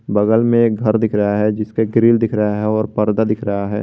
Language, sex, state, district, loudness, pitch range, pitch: Hindi, male, Jharkhand, Garhwa, -16 LUFS, 105-110 Hz, 110 Hz